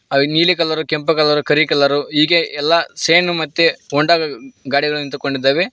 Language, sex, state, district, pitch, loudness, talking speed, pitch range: Kannada, male, Karnataka, Koppal, 155 Hz, -15 LUFS, 145 wpm, 145-165 Hz